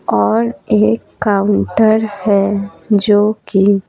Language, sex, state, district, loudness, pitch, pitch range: Hindi, female, Bihar, Patna, -14 LUFS, 205 Hz, 200-220 Hz